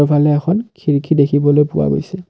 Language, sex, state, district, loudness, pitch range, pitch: Assamese, male, Assam, Kamrup Metropolitan, -15 LUFS, 145-175 Hz, 150 Hz